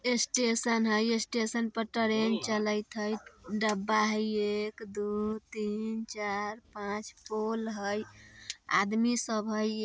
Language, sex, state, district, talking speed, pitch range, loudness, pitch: Bajjika, female, Bihar, Vaishali, 115 wpm, 210-225 Hz, -31 LUFS, 215 Hz